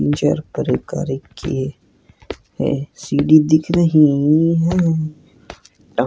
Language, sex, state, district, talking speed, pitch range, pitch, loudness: Hindi, male, Rajasthan, Nagaur, 80 wpm, 145-165 Hz, 155 Hz, -17 LUFS